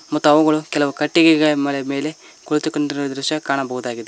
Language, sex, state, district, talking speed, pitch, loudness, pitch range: Kannada, male, Karnataka, Koppal, 115 wpm, 150 Hz, -18 LUFS, 140-155 Hz